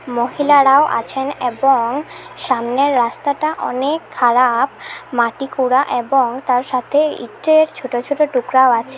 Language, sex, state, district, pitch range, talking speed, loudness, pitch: Bengali, female, Assam, Hailakandi, 245-285 Hz, 115 wpm, -16 LUFS, 265 Hz